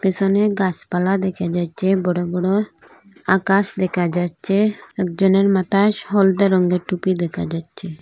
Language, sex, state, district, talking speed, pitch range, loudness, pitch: Bengali, female, Assam, Hailakandi, 125 wpm, 180-195 Hz, -19 LUFS, 190 Hz